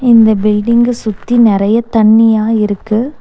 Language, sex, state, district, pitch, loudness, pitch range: Tamil, female, Tamil Nadu, Nilgiris, 220 Hz, -11 LUFS, 215-235 Hz